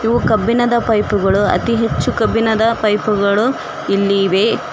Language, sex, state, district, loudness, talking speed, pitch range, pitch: Kannada, female, Karnataka, Koppal, -15 LUFS, 140 wpm, 200-230 Hz, 220 Hz